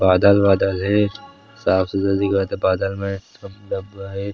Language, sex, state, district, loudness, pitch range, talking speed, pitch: Chhattisgarhi, male, Chhattisgarh, Sarguja, -19 LUFS, 95-100 Hz, 125 wpm, 100 Hz